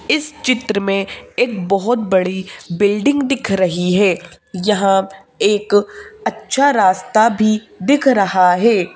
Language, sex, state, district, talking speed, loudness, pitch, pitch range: Hindi, female, Madhya Pradesh, Bhopal, 120 wpm, -16 LUFS, 205 Hz, 190-245 Hz